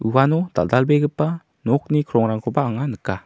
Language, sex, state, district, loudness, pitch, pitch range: Garo, male, Meghalaya, South Garo Hills, -20 LUFS, 135 Hz, 115-150 Hz